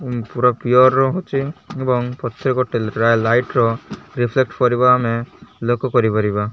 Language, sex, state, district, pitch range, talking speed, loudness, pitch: Odia, male, Odisha, Malkangiri, 115-130 Hz, 140 wpm, -18 LUFS, 125 Hz